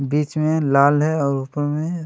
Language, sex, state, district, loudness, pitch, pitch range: Hindi, male, Chhattisgarh, Kabirdham, -19 LUFS, 150 Hz, 140-155 Hz